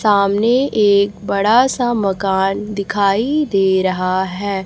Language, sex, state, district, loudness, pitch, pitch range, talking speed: Hindi, female, Chhattisgarh, Raipur, -16 LUFS, 200 Hz, 195-220 Hz, 115 wpm